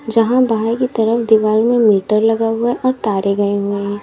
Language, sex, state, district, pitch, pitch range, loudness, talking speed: Hindi, female, Uttar Pradesh, Lalitpur, 225 Hz, 205-235 Hz, -15 LUFS, 210 wpm